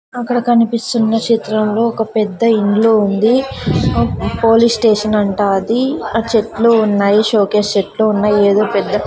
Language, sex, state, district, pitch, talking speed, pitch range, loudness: Telugu, female, Andhra Pradesh, Sri Satya Sai, 220 Hz, 125 wpm, 210-230 Hz, -14 LUFS